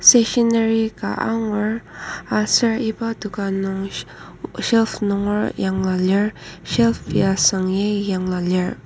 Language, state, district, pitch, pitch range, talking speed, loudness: Ao, Nagaland, Kohima, 210 Hz, 190-225 Hz, 115 wpm, -20 LUFS